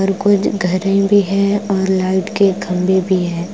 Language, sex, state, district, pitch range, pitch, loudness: Hindi, female, Punjab, Kapurthala, 185-200 Hz, 195 Hz, -15 LUFS